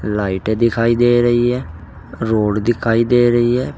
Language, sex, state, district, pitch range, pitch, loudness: Hindi, male, Uttar Pradesh, Saharanpur, 110-120 Hz, 115 Hz, -16 LUFS